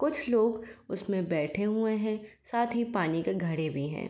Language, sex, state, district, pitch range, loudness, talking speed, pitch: Hindi, female, Uttar Pradesh, Varanasi, 165-225 Hz, -30 LUFS, 190 wpm, 215 Hz